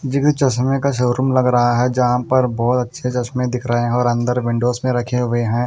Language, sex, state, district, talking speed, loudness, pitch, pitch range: Hindi, male, Punjab, Fazilka, 245 wpm, -18 LUFS, 125 Hz, 120-130 Hz